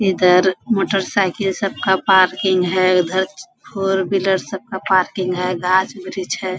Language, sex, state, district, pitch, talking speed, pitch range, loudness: Hindi, female, Bihar, Bhagalpur, 190 Hz, 175 wpm, 185-195 Hz, -17 LUFS